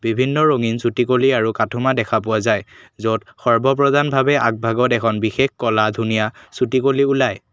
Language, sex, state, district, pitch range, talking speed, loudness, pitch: Assamese, male, Assam, Kamrup Metropolitan, 110-135 Hz, 145 wpm, -18 LUFS, 120 Hz